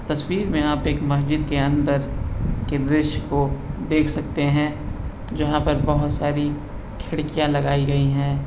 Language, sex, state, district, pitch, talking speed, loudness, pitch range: Hindi, male, Uttar Pradesh, Deoria, 145 Hz, 150 wpm, -22 LUFS, 140-150 Hz